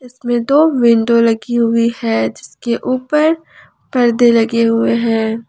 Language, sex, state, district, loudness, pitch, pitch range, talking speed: Hindi, female, Jharkhand, Ranchi, -14 LUFS, 235 Hz, 230-250 Hz, 130 wpm